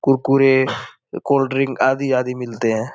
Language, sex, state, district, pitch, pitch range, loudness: Hindi, male, Uttar Pradesh, Etah, 130 Hz, 125-135 Hz, -18 LUFS